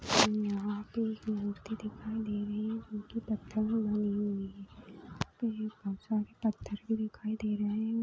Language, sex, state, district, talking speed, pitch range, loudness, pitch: Hindi, female, Chhattisgarh, Bastar, 185 wpm, 205-220 Hz, -35 LUFS, 215 Hz